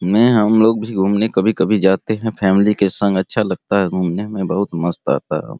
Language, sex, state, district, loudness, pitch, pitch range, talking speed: Hindi, male, Bihar, Araria, -16 LUFS, 100 Hz, 95-110 Hz, 205 wpm